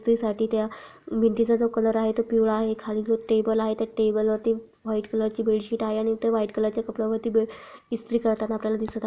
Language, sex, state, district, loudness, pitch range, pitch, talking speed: Marathi, female, Maharashtra, Pune, -25 LUFS, 220-230 Hz, 220 Hz, 205 wpm